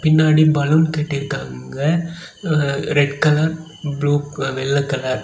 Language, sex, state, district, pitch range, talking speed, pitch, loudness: Tamil, male, Tamil Nadu, Kanyakumari, 140-155 Hz, 105 wpm, 145 Hz, -18 LUFS